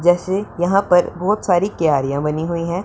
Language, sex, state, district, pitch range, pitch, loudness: Hindi, male, Punjab, Pathankot, 165-185 Hz, 175 Hz, -18 LUFS